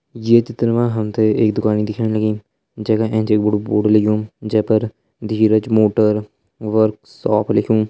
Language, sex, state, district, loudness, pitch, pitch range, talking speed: Hindi, male, Uttarakhand, Uttarkashi, -17 LUFS, 110 Hz, 105-110 Hz, 160 wpm